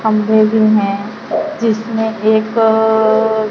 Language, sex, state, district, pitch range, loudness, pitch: Hindi, female, Chhattisgarh, Raipur, 215-220 Hz, -14 LUFS, 220 Hz